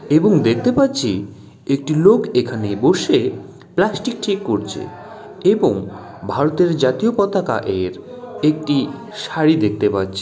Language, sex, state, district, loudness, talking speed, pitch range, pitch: Bengali, male, West Bengal, Malda, -18 LUFS, 110 wpm, 125-205 Hz, 155 Hz